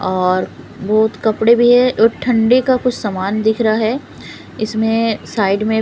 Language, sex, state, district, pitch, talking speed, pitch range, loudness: Hindi, female, Punjab, Fazilka, 220 Hz, 165 wpm, 215-235 Hz, -15 LUFS